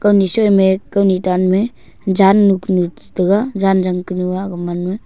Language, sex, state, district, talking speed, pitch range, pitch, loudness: Wancho, male, Arunachal Pradesh, Longding, 180 wpm, 185-200 Hz, 190 Hz, -15 LUFS